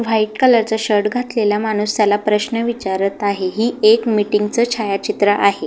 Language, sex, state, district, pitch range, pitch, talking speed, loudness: Marathi, female, Maharashtra, Solapur, 205-230 Hz, 210 Hz, 170 wpm, -16 LUFS